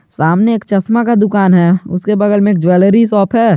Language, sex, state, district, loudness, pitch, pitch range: Hindi, male, Jharkhand, Garhwa, -11 LUFS, 205 Hz, 180-215 Hz